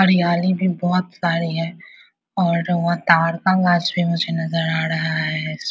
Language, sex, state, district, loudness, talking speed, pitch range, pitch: Hindi, female, Bihar, Vaishali, -19 LUFS, 145 wpm, 165-180 Hz, 170 Hz